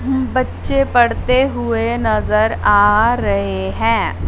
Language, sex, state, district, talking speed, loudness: Hindi, female, Punjab, Fazilka, 100 wpm, -16 LUFS